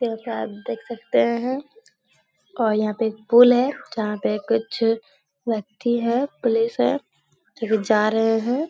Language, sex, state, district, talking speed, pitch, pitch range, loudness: Hindi, female, Bihar, Supaul, 165 wpm, 225 Hz, 220-240 Hz, -22 LUFS